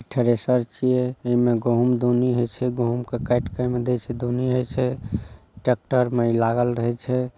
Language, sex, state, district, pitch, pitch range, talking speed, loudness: Maithili, male, Bihar, Saharsa, 120 Hz, 120-125 Hz, 195 wpm, -23 LUFS